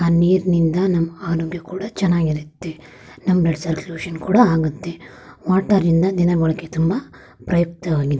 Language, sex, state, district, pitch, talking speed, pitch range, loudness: Kannada, female, Karnataka, Raichur, 170 Hz, 130 wpm, 160-180 Hz, -19 LUFS